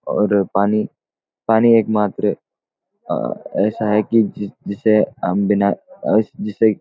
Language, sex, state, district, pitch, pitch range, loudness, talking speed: Hindi, male, Uttarakhand, Uttarkashi, 105 Hz, 100-110 Hz, -18 LUFS, 140 wpm